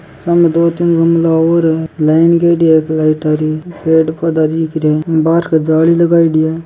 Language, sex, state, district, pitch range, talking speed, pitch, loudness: Marwari, male, Rajasthan, Churu, 160-170 Hz, 190 wpm, 160 Hz, -12 LUFS